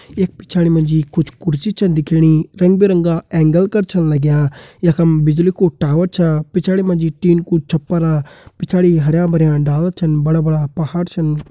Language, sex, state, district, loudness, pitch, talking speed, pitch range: Kumaoni, male, Uttarakhand, Uttarkashi, -15 LUFS, 165 Hz, 165 wpm, 155-180 Hz